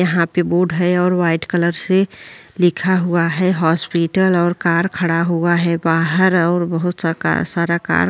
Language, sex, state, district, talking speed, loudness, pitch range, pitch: Hindi, female, Uttar Pradesh, Jyotiba Phule Nagar, 185 wpm, -17 LUFS, 170-180 Hz, 175 Hz